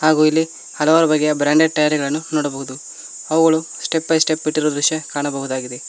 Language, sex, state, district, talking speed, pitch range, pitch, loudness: Kannada, male, Karnataka, Koppal, 140 wpm, 145-160 Hz, 155 Hz, -18 LUFS